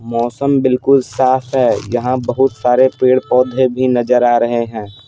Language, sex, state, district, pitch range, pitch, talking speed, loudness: Hindi, male, Bihar, Patna, 120-130 Hz, 125 Hz, 165 wpm, -14 LUFS